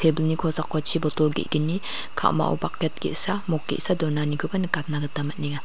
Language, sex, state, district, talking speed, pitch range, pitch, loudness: Garo, female, Meghalaya, West Garo Hills, 150 wpm, 150-160 Hz, 155 Hz, -22 LUFS